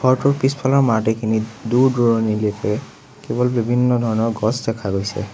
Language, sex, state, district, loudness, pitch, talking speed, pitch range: Assamese, male, Assam, Sonitpur, -19 LUFS, 115 Hz, 110 wpm, 110-125 Hz